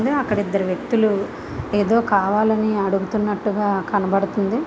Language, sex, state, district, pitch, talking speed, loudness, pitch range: Telugu, female, Andhra Pradesh, Visakhapatnam, 205 Hz, 105 wpm, -20 LUFS, 195-215 Hz